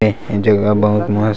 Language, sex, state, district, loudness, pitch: Chhattisgarhi, male, Chhattisgarh, Sarguja, -15 LUFS, 105 Hz